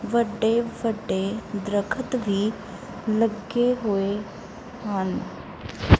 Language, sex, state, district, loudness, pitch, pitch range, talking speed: Punjabi, female, Punjab, Kapurthala, -25 LUFS, 215 Hz, 200-230 Hz, 70 wpm